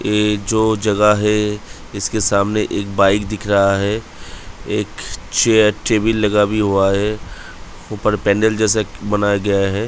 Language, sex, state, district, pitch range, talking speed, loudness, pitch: Hindi, male, Uttar Pradesh, Budaun, 100-105 Hz, 145 wpm, -16 LUFS, 105 Hz